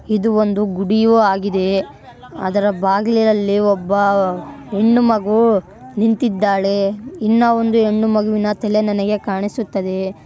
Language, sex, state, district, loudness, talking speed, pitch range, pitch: Kannada, male, Karnataka, Bellary, -16 LUFS, 95 wpm, 195-220 Hz, 210 Hz